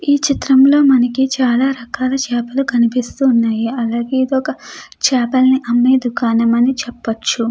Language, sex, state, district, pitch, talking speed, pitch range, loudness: Telugu, female, Andhra Pradesh, Krishna, 255 Hz, 130 wpm, 235-265 Hz, -15 LUFS